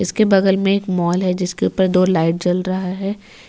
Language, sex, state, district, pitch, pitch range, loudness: Hindi, female, Jharkhand, Ranchi, 185 Hz, 180-195 Hz, -17 LUFS